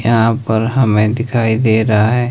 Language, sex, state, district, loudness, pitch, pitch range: Hindi, male, Himachal Pradesh, Shimla, -14 LUFS, 115 Hz, 110-115 Hz